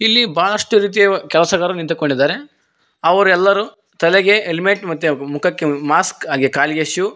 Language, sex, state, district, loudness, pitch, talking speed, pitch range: Kannada, male, Karnataka, Koppal, -15 LUFS, 180 Hz, 135 wpm, 155-200 Hz